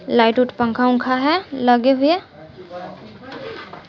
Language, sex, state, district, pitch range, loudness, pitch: Hindi, female, Bihar, West Champaran, 245-275 Hz, -17 LUFS, 250 Hz